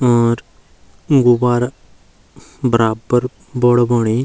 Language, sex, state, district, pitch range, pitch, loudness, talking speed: Garhwali, male, Uttarakhand, Uttarkashi, 95-120 Hz, 120 Hz, -16 LUFS, 85 wpm